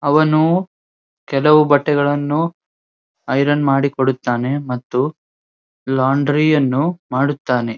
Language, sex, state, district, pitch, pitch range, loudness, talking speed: Kannada, male, Karnataka, Dharwad, 140 Hz, 130-150 Hz, -17 LUFS, 60 wpm